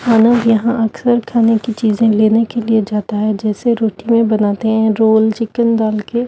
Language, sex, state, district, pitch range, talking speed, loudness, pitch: Hindi, female, Delhi, New Delhi, 215-230 Hz, 190 wpm, -14 LUFS, 225 Hz